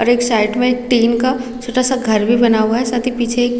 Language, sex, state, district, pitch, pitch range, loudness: Hindi, female, Chhattisgarh, Raigarh, 245 Hz, 235-245 Hz, -15 LUFS